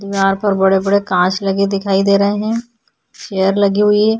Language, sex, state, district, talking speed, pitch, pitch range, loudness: Hindi, female, Uttar Pradesh, Budaun, 185 wpm, 200 Hz, 195-210 Hz, -15 LUFS